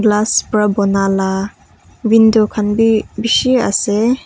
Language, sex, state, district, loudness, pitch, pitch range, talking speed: Nagamese, female, Nagaland, Kohima, -14 LUFS, 215 Hz, 200-225 Hz, 125 wpm